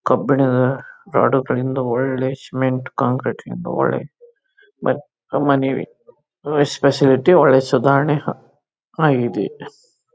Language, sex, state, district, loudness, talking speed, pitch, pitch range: Kannada, male, Karnataka, Chamarajanagar, -18 LUFS, 75 wpm, 135 Hz, 130-160 Hz